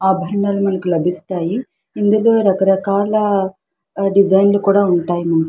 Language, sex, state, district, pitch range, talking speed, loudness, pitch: Telugu, female, Andhra Pradesh, Krishna, 185-200 Hz, 100 wpm, -16 LUFS, 195 Hz